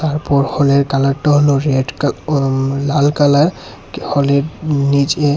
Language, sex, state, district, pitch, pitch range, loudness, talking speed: Bengali, male, Tripura, West Tripura, 140 Hz, 135-145 Hz, -15 LUFS, 100 wpm